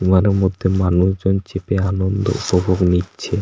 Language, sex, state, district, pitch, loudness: Bengali, male, West Bengal, Paschim Medinipur, 95 Hz, -18 LUFS